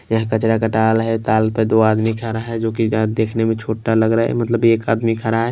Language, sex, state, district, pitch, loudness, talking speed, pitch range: Hindi, male, Punjab, Kapurthala, 110 Hz, -17 LUFS, 260 wpm, 110-115 Hz